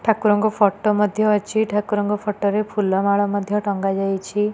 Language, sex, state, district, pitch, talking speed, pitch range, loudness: Odia, female, Odisha, Nuapada, 210 Hz, 130 wpm, 200-210 Hz, -20 LUFS